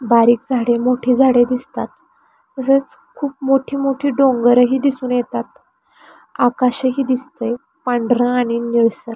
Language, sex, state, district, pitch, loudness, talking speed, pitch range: Marathi, female, Maharashtra, Pune, 255 Hz, -17 LUFS, 120 wpm, 245-275 Hz